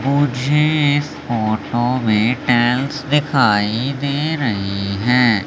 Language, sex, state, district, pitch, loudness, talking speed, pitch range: Hindi, male, Madhya Pradesh, Umaria, 125 Hz, -17 LUFS, 100 wpm, 110-145 Hz